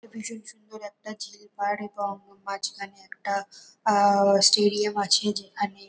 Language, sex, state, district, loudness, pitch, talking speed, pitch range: Bengali, female, West Bengal, North 24 Parganas, -24 LUFS, 205 Hz, 120 wpm, 200-210 Hz